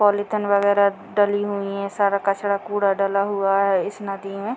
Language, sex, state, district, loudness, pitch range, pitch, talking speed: Hindi, female, Bihar, Muzaffarpur, -21 LUFS, 200-205 Hz, 200 Hz, 185 wpm